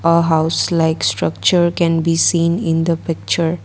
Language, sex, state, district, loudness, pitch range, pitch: English, female, Assam, Kamrup Metropolitan, -16 LUFS, 160-170 Hz, 165 Hz